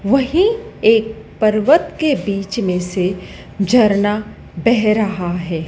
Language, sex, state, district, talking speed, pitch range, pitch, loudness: Hindi, female, Madhya Pradesh, Dhar, 115 wpm, 195-245 Hz, 215 Hz, -16 LUFS